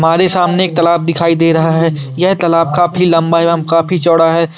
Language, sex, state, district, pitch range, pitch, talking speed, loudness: Hindi, male, Bihar, Jamui, 165-175 Hz, 165 Hz, 210 wpm, -11 LUFS